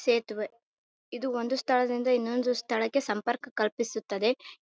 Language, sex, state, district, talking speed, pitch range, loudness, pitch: Kannada, female, Karnataka, Raichur, 105 wpm, 225-250 Hz, -29 LUFS, 240 Hz